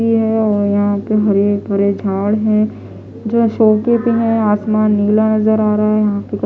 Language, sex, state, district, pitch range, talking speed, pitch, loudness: Hindi, female, Odisha, Khordha, 205-220 Hz, 205 wpm, 215 Hz, -14 LUFS